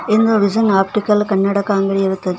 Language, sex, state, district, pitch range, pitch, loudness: Kannada, female, Karnataka, Koppal, 195-210 Hz, 200 Hz, -15 LUFS